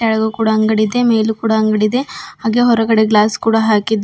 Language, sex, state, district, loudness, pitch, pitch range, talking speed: Kannada, female, Karnataka, Bidar, -14 LUFS, 220 Hz, 215-225 Hz, 195 wpm